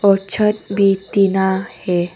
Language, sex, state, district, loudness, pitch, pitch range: Hindi, female, Arunachal Pradesh, Longding, -17 LUFS, 195 Hz, 190-200 Hz